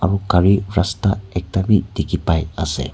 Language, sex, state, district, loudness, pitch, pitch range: Nagamese, male, Nagaland, Kohima, -18 LUFS, 95 Hz, 90-100 Hz